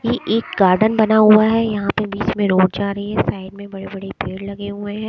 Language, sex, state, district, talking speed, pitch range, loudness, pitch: Hindi, female, Haryana, Charkhi Dadri, 260 wpm, 195-215 Hz, -17 LUFS, 205 Hz